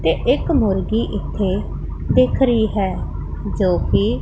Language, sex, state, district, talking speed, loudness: Punjabi, female, Punjab, Pathankot, 115 wpm, -19 LUFS